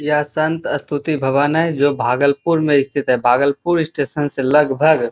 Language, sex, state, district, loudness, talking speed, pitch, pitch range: Hindi, male, Bihar, Bhagalpur, -17 LUFS, 175 wpm, 145 Hz, 140-155 Hz